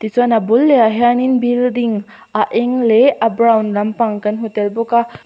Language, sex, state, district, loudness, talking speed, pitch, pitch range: Mizo, female, Mizoram, Aizawl, -14 LUFS, 205 wpm, 230 Hz, 220-245 Hz